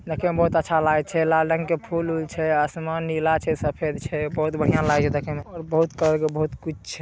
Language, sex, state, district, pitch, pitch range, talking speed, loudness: Maithili, male, Bihar, Saharsa, 160 Hz, 150-165 Hz, 255 wpm, -23 LUFS